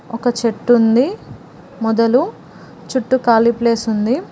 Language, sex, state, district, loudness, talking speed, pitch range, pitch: Telugu, female, Telangana, Mahabubabad, -16 LUFS, 110 wpm, 230-255 Hz, 235 Hz